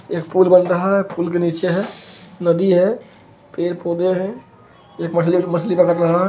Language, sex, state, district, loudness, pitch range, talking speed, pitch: Hindi, male, Bihar, Begusarai, -17 LUFS, 170-185 Hz, 210 wpm, 180 Hz